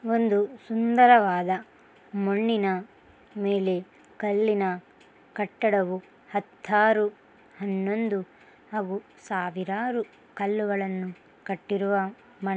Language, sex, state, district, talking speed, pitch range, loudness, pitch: Kannada, female, Karnataka, Bellary, 55 wpm, 195-215 Hz, -26 LUFS, 200 Hz